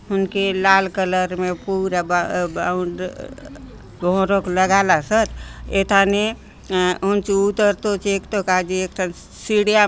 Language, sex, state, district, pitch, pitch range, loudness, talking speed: Halbi, female, Chhattisgarh, Bastar, 195 Hz, 185-200 Hz, -19 LUFS, 105 wpm